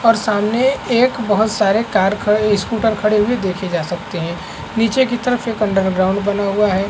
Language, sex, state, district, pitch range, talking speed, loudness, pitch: Hindi, male, Bihar, Saharsa, 195-230 Hz, 200 wpm, -17 LUFS, 210 Hz